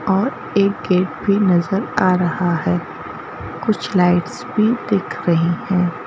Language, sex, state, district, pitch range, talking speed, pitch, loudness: Hindi, female, Madhya Pradesh, Bhopal, 180-215 Hz, 140 wpm, 190 Hz, -18 LUFS